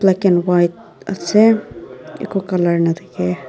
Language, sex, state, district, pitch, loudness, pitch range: Nagamese, female, Nagaland, Dimapur, 180 Hz, -16 LUFS, 175-200 Hz